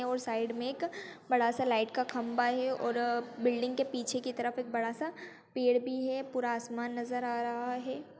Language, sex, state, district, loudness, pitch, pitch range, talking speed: Hindi, female, Bihar, Bhagalpur, -33 LUFS, 245 Hz, 240-260 Hz, 205 wpm